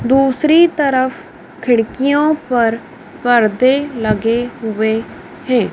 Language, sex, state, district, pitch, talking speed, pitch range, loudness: Hindi, female, Madhya Pradesh, Dhar, 250 Hz, 85 wpm, 230-285 Hz, -15 LUFS